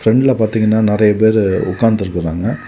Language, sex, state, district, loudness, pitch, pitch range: Tamil, male, Tamil Nadu, Kanyakumari, -14 LUFS, 110 Hz, 100-110 Hz